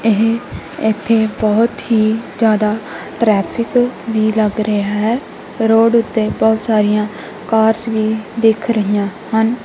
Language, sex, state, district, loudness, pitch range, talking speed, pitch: Punjabi, female, Punjab, Kapurthala, -15 LUFS, 215-230 Hz, 120 wpm, 220 Hz